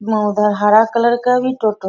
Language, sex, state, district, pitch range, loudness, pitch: Hindi, female, Bihar, Bhagalpur, 210-240 Hz, -15 LUFS, 215 Hz